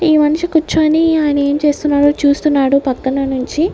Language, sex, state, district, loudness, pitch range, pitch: Telugu, female, Andhra Pradesh, Sri Satya Sai, -14 LUFS, 280-310 Hz, 290 Hz